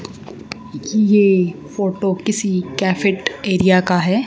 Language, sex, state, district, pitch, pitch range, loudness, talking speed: Hindi, female, Haryana, Charkhi Dadri, 190 Hz, 185-205 Hz, -17 LUFS, 100 wpm